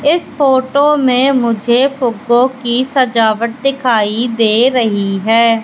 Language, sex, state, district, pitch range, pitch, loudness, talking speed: Hindi, female, Madhya Pradesh, Katni, 230-265 Hz, 245 Hz, -13 LUFS, 115 wpm